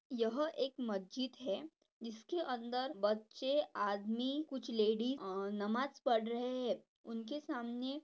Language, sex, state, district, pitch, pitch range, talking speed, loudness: Hindi, female, Maharashtra, Dhule, 250 Hz, 225-280 Hz, 120 wpm, -39 LUFS